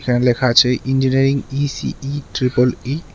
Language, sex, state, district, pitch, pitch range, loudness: Bengali, male, Tripura, West Tripura, 130 Hz, 125-140 Hz, -17 LUFS